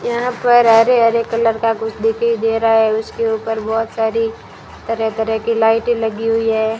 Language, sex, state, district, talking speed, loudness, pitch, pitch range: Hindi, female, Rajasthan, Bikaner, 175 wpm, -16 LUFS, 225 Hz, 225-230 Hz